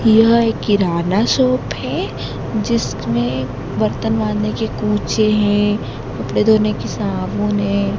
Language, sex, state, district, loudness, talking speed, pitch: Hindi, female, Madhya Pradesh, Dhar, -17 LUFS, 120 wpm, 125 Hz